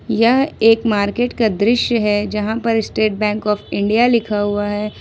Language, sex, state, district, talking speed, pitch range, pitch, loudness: Hindi, female, Jharkhand, Ranchi, 180 wpm, 210-230 Hz, 215 Hz, -17 LUFS